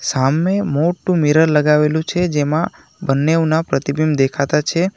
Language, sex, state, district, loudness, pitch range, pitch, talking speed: Gujarati, male, Gujarat, Navsari, -16 LUFS, 145-170 Hz, 155 Hz, 130 wpm